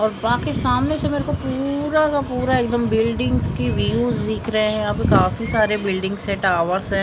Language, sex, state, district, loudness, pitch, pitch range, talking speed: Hindi, male, Maharashtra, Mumbai Suburban, -20 LUFS, 215 Hz, 190-240 Hz, 185 wpm